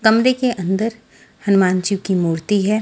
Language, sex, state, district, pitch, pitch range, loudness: Hindi, female, Punjab, Fazilka, 200 Hz, 185-225 Hz, -18 LUFS